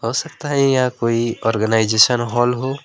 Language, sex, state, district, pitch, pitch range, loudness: Hindi, male, West Bengal, Alipurduar, 120 Hz, 115-130 Hz, -17 LUFS